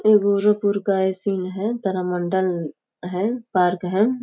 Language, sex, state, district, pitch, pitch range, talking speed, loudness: Hindi, female, Uttar Pradesh, Gorakhpur, 195 Hz, 180-210 Hz, 140 wpm, -21 LUFS